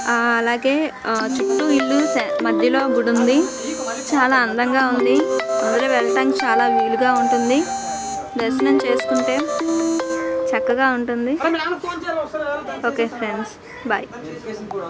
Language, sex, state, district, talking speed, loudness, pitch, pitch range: Telugu, female, Andhra Pradesh, Srikakulam, 95 wpm, -19 LUFS, 240 Hz, 165-265 Hz